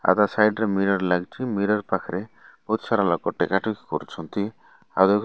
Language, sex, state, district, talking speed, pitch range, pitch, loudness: Odia, male, Odisha, Malkangiri, 170 wpm, 95-105 Hz, 100 Hz, -24 LUFS